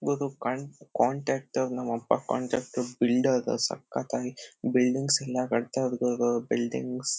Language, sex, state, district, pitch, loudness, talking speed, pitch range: Kannada, male, Karnataka, Shimoga, 125 Hz, -28 LUFS, 115 wpm, 120-130 Hz